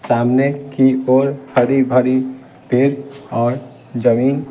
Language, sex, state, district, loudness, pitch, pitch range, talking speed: Hindi, male, Bihar, Patna, -16 LUFS, 130 Hz, 125-140 Hz, 105 wpm